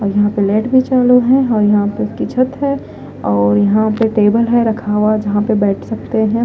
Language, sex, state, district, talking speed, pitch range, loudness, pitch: Hindi, female, Punjab, Fazilka, 230 wpm, 205-240 Hz, -14 LUFS, 215 Hz